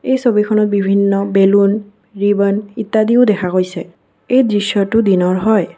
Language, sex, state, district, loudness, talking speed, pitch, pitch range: Assamese, female, Assam, Kamrup Metropolitan, -14 LUFS, 125 wpm, 205 Hz, 195-220 Hz